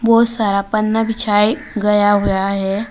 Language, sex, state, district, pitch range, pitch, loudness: Hindi, female, Uttar Pradesh, Saharanpur, 200-225 Hz, 210 Hz, -15 LUFS